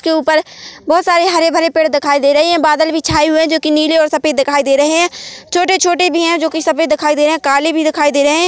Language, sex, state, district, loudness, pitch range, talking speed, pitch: Hindi, female, Chhattisgarh, Korba, -12 LUFS, 300-330 Hz, 285 wpm, 315 Hz